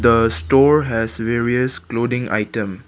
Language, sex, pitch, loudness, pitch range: English, male, 115 Hz, -18 LUFS, 115-125 Hz